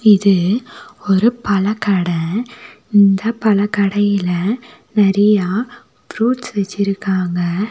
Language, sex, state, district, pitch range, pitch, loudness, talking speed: Tamil, female, Tamil Nadu, Nilgiris, 195-220 Hz, 205 Hz, -16 LUFS, 60 wpm